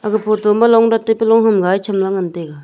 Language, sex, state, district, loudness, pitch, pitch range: Wancho, female, Arunachal Pradesh, Longding, -14 LUFS, 210 Hz, 190-225 Hz